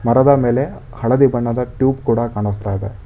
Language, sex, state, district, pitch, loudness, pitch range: Kannada, male, Karnataka, Bangalore, 120 Hz, -17 LUFS, 105-130 Hz